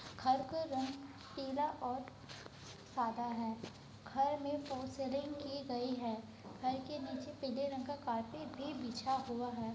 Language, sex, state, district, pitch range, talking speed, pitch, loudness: Hindi, female, Bihar, Kishanganj, 245-280 Hz, 155 wpm, 265 Hz, -41 LUFS